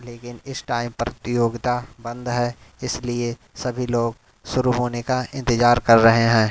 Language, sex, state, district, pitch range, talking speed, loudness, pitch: Hindi, male, Bihar, Katihar, 115-125 Hz, 150 wpm, -21 LUFS, 120 Hz